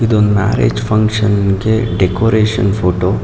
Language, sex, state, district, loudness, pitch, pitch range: Kannada, male, Karnataka, Mysore, -13 LUFS, 105 Hz, 100-110 Hz